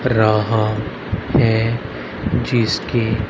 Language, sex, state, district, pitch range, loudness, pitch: Hindi, male, Haryana, Rohtak, 110-120 Hz, -19 LUFS, 110 Hz